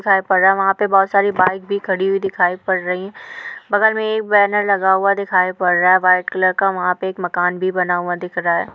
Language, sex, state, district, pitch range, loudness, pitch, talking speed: Hindi, female, Uttar Pradesh, Deoria, 180-200 Hz, -16 LUFS, 190 Hz, 265 wpm